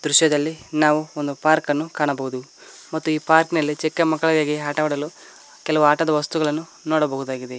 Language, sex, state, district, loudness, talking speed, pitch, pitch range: Kannada, male, Karnataka, Koppal, -21 LUFS, 120 wpm, 150 Hz, 145-160 Hz